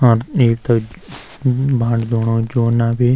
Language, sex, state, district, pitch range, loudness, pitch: Garhwali, male, Uttarakhand, Uttarkashi, 115-125 Hz, -17 LUFS, 115 Hz